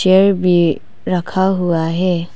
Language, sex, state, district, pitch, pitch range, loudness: Hindi, female, Arunachal Pradesh, Papum Pare, 180 Hz, 170-185 Hz, -15 LUFS